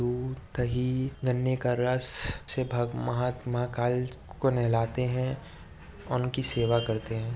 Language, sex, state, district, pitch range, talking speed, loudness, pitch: Hindi, male, Chhattisgarh, Bastar, 120-125 Hz, 130 wpm, -29 LUFS, 125 Hz